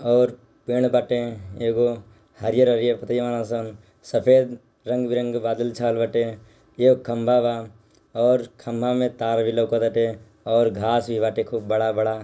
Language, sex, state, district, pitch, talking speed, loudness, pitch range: Bhojpuri, male, Bihar, Gopalganj, 115 Hz, 160 wpm, -22 LUFS, 115-120 Hz